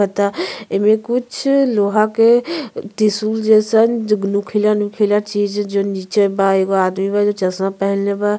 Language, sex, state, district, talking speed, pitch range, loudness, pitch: Bhojpuri, female, Uttar Pradesh, Ghazipur, 145 wpm, 200-220 Hz, -16 LUFS, 205 Hz